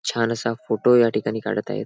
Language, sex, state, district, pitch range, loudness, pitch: Marathi, male, Maharashtra, Sindhudurg, 110-120 Hz, -21 LUFS, 115 Hz